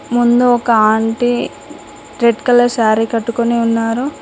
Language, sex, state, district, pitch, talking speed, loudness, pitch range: Telugu, female, Telangana, Mahabubabad, 235 Hz, 115 wpm, -14 LUFS, 225-245 Hz